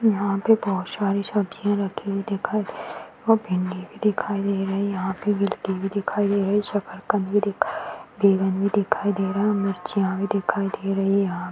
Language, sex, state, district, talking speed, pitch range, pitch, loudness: Hindi, female, Chhattisgarh, Rajnandgaon, 230 wpm, 195-205 Hz, 200 Hz, -24 LUFS